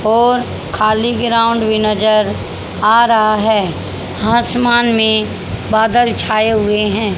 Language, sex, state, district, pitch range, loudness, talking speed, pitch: Hindi, female, Haryana, Charkhi Dadri, 215-235 Hz, -13 LUFS, 115 wpm, 220 Hz